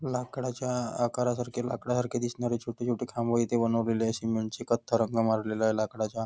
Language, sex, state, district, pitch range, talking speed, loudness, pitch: Marathi, male, Maharashtra, Nagpur, 115-125 Hz, 170 wpm, -30 LUFS, 120 Hz